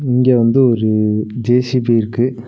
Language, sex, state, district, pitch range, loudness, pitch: Tamil, male, Tamil Nadu, Nilgiris, 110-125 Hz, -14 LUFS, 120 Hz